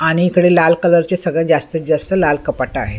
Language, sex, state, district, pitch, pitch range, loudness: Marathi, female, Maharashtra, Mumbai Suburban, 165 Hz, 150-175 Hz, -15 LUFS